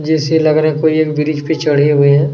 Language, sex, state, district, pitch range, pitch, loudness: Hindi, male, Chhattisgarh, Kabirdham, 145-155 Hz, 155 Hz, -13 LUFS